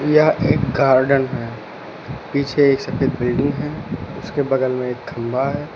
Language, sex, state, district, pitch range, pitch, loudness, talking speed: Hindi, male, Uttar Pradesh, Lucknow, 125-140 Hz, 135 Hz, -19 LUFS, 155 wpm